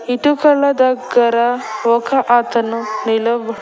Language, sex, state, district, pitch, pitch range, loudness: Telugu, female, Andhra Pradesh, Annamaya, 240 Hz, 230-255 Hz, -15 LUFS